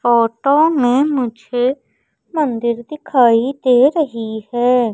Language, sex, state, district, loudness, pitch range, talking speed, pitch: Hindi, female, Madhya Pradesh, Umaria, -16 LUFS, 235-275 Hz, 95 wpm, 250 Hz